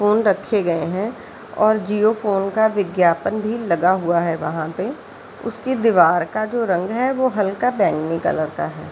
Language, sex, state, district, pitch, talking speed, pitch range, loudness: Hindi, female, Bihar, Jahanabad, 205 Hz, 190 wpm, 175-220 Hz, -19 LUFS